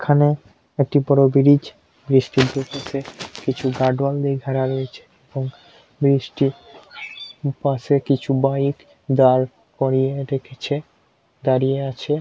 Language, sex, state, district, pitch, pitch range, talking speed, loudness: Bengali, male, West Bengal, Purulia, 135 Hz, 130-140 Hz, 80 wpm, -20 LUFS